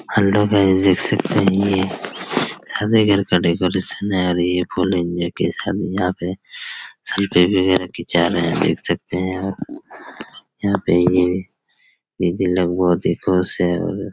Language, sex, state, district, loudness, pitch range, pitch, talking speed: Hindi, male, Chhattisgarh, Raigarh, -18 LUFS, 90-95 Hz, 90 Hz, 125 wpm